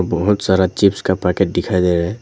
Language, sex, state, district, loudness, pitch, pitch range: Hindi, male, Arunachal Pradesh, Longding, -16 LUFS, 95 Hz, 90-100 Hz